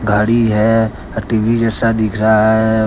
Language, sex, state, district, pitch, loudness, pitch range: Hindi, male, Jharkhand, Deoghar, 110 Hz, -14 LUFS, 110-115 Hz